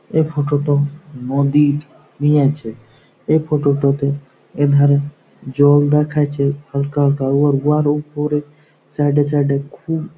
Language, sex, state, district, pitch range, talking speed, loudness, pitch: Bengali, male, West Bengal, Jhargram, 140-150 Hz, 120 wpm, -17 LUFS, 145 Hz